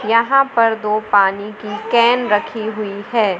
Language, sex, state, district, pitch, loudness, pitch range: Hindi, female, Madhya Pradesh, Umaria, 215 Hz, -16 LUFS, 210-230 Hz